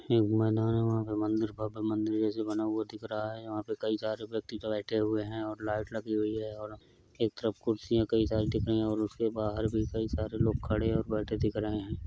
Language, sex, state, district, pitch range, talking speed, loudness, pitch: Hindi, male, Uttar Pradesh, Varanasi, 105-110 Hz, 240 wpm, -32 LUFS, 110 Hz